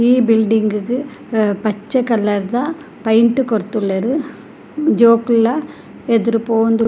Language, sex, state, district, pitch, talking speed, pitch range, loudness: Tulu, female, Karnataka, Dakshina Kannada, 230 Hz, 95 wpm, 220-245 Hz, -16 LUFS